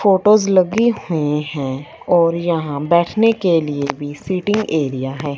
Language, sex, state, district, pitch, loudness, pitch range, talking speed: Hindi, female, Punjab, Fazilka, 165 Hz, -17 LUFS, 145-195 Hz, 145 wpm